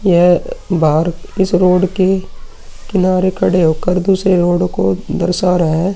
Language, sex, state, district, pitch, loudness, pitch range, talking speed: Hindi, male, Uttar Pradesh, Muzaffarnagar, 180 Hz, -14 LUFS, 175-185 Hz, 140 wpm